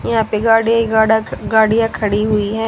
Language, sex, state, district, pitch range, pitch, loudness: Hindi, female, Haryana, Rohtak, 215-225 Hz, 220 Hz, -15 LUFS